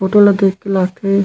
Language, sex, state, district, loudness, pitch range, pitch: Chhattisgarhi, male, Chhattisgarh, Raigarh, -14 LUFS, 190-200 Hz, 195 Hz